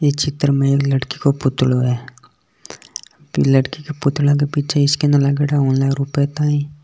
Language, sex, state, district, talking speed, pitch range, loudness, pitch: Marwari, male, Rajasthan, Nagaur, 175 wpm, 135-145 Hz, -17 LUFS, 140 Hz